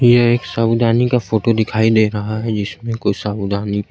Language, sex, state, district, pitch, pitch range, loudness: Hindi, male, Bihar, Kaimur, 110 Hz, 105-115 Hz, -17 LUFS